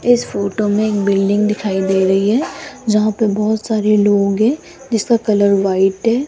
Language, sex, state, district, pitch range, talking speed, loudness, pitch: Hindi, female, Rajasthan, Jaipur, 200-225 Hz, 180 wpm, -15 LUFS, 210 Hz